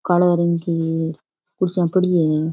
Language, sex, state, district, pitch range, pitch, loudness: Rajasthani, female, Rajasthan, Churu, 165-175 Hz, 170 Hz, -19 LUFS